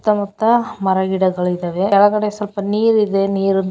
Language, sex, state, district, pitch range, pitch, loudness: Kannada, female, Karnataka, Chamarajanagar, 190-210 Hz, 200 Hz, -17 LUFS